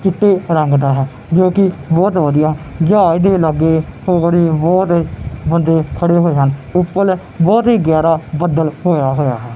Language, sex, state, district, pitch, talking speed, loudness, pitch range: Punjabi, male, Punjab, Kapurthala, 165 Hz, 155 wpm, -14 LUFS, 155-180 Hz